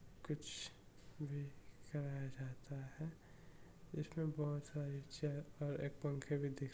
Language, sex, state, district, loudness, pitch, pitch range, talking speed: Hindi, male, Bihar, East Champaran, -46 LUFS, 140 Hz, 135-150 Hz, 125 wpm